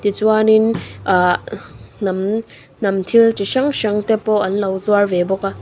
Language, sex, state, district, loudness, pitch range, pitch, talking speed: Mizo, female, Mizoram, Aizawl, -17 LUFS, 195-220 Hz, 205 Hz, 170 wpm